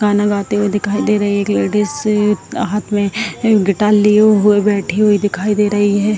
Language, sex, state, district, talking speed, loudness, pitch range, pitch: Hindi, female, Bihar, Jahanabad, 195 wpm, -14 LUFS, 205-210 Hz, 210 Hz